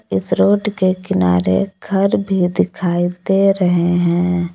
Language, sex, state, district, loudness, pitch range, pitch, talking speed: Hindi, female, Jharkhand, Palamu, -16 LUFS, 175-195 Hz, 180 Hz, 130 wpm